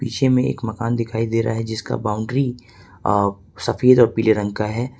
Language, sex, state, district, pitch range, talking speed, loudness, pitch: Hindi, male, Jharkhand, Ranchi, 105-125 Hz, 190 wpm, -20 LUFS, 115 Hz